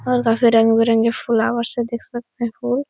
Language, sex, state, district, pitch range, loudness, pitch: Hindi, female, Uttar Pradesh, Etah, 230-240 Hz, -18 LUFS, 235 Hz